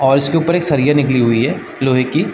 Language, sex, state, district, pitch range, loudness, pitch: Hindi, male, Chhattisgarh, Bastar, 130-160 Hz, -15 LUFS, 135 Hz